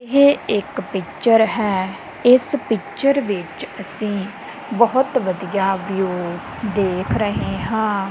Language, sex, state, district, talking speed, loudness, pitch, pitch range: Punjabi, female, Punjab, Kapurthala, 105 wpm, -19 LUFS, 210 Hz, 195-240 Hz